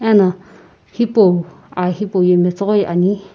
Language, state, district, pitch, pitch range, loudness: Sumi, Nagaland, Kohima, 195 Hz, 180-205 Hz, -15 LUFS